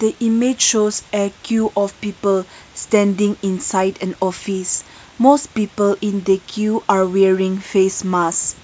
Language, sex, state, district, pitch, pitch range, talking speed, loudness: English, female, Nagaland, Kohima, 200 Hz, 190-215 Hz, 140 wpm, -18 LUFS